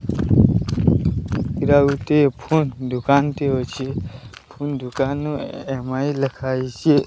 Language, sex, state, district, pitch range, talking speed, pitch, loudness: Odia, male, Odisha, Sambalpur, 125-145 Hz, 100 wpm, 135 Hz, -20 LUFS